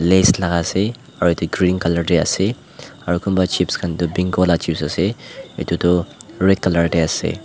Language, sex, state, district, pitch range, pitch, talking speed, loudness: Nagamese, male, Nagaland, Dimapur, 85-95 Hz, 90 Hz, 185 wpm, -18 LUFS